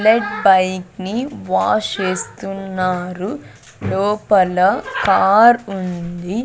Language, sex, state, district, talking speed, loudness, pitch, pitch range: Telugu, female, Andhra Pradesh, Sri Satya Sai, 75 wpm, -17 LUFS, 190 Hz, 180-210 Hz